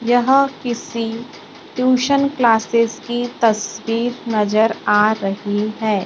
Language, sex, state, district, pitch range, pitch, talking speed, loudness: Hindi, female, Maharashtra, Gondia, 215-245 Hz, 230 Hz, 100 wpm, -18 LUFS